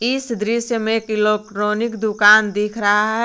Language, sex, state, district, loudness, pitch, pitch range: Hindi, female, Jharkhand, Garhwa, -17 LUFS, 215 Hz, 210-230 Hz